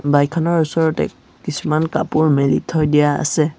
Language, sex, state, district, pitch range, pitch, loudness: Assamese, male, Assam, Sonitpur, 145-160 Hz, 155 Hz, -17 LUFS